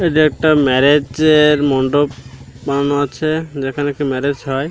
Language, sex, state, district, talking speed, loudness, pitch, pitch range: Bengali, male, Odisha, Malkangiri, 140 wpm, -15 LUFS, 145 Hz, 135-150 Hz